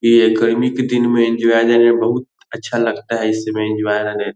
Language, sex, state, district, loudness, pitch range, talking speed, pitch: Hindi, male, Bihar, Lakhisarai, -16 LUFS, 110-120 Hz, 235 wpm, 115 Hz